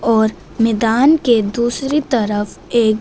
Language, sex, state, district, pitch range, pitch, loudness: Hindi, female, Punjab, Fazilka, 220-250 Hz, 230 Hz, -16 LUFS